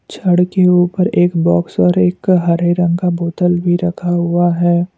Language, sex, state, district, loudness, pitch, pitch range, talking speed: Hindi, male, Assam, Kamrup Metropolitan, -14 LUFS, 175 Hz, 170-180 Hz, 180 wpm